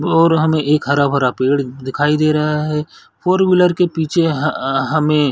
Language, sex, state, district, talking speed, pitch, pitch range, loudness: Hindi, male, Chhattisgarh, Sarguja, 200 wpm, 150 Hz, 140-165 Hz, -16 LUFS